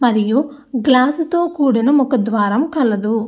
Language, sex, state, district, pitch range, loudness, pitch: Telugu, female, Andhra Pradesh, Anantapur, 225-285 Hz, -16 LUFS, 260 Hz